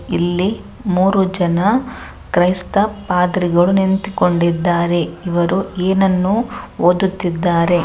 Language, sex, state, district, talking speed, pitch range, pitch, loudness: Kannada, female, Karnataka, Bellary, 75 wpm, 175-195 Hz, 180 Hz, -16 LUFS